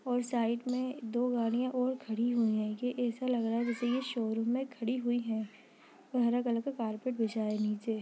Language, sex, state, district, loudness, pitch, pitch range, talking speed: Hindi, female, Bihar, Sitamarhi, -33 LUFS, 240 Hz, 225-250 Hz, 210 wpm